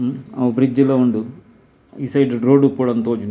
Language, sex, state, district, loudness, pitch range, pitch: Tulu, male, Karnataka, Dakshina Kannada, -17 LUFS, 120-135 Hz, 130 Hz